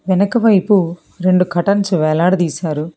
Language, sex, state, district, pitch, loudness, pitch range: Telugu, female, Telangana, Hyderabad, 180 Hz, -15 LUFS, 170-200 Hz